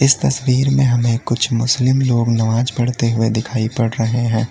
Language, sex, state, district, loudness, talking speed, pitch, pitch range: Hindi, male, Uttar Pradesh, Lalitpur, -16 LUFS, 175 wpm, 120 Hz, 115-130 Hz